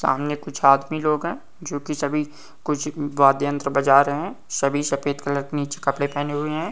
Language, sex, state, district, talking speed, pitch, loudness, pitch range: Hindi, male, West Bengal, Malda, 205 wpm, 145 Hz, -22 LUFS, 140-150 Hz